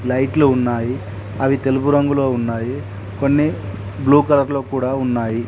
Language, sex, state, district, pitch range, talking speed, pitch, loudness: Telugu, male, Telangana, Mahabubabad, 115-140 Hz, 130 wpm, 130 Hz, -18 LUFS